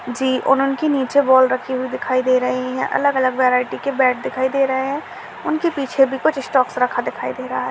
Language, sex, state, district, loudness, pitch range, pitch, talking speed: Hindi, female, Chhattisgarh, Kabirdham, -18 LUFS, 255-275 Hz, 260 Hz, 235 wpm